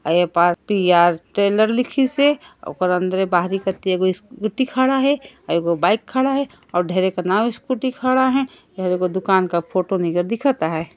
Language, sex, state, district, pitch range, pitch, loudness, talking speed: Hindi, female, Chhattisgarh, Sarguja, 180-260 Hz, 190 Hz, -19 LUFS, 175 wpm